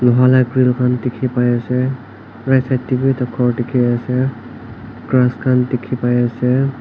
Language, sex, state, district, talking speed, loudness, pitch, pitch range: Nagamese, male, Nagaland, Kohima, 175 wpm, -16 LUFS, 125 Hz, 120-130 Hz